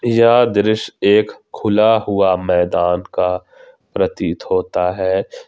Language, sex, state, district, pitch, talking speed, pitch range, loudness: Hindi, male, Jharkhand, Ranchi, 105 Hz, 110 wpm, 90-120 Hz, -16 LUFS